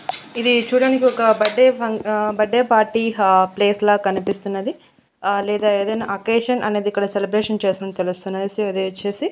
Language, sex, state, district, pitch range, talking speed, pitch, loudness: Telugu, female, Andhra Pradesh, Annamaya, 200-230 Hz, 155 wpm, 210 Hz, -19 LUFS